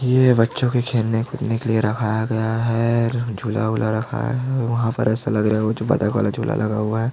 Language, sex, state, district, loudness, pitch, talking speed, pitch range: Hindi, male, Chhattisgarh, Jashpur, -20 LUFS, 115 Hz, 245 wpm, 110-120 Hz